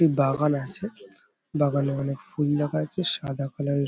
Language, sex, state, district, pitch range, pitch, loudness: Bengali, male, West Bengal, Paschim Medinipur, 140-155 Hz, 145 Hz, -26 LUFS